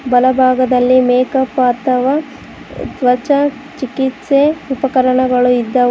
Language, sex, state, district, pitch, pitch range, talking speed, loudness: Kannada, female, Karnataka, Koppal, 255 Hz, 250-270 Hz, 90 wpm, -13 LUFS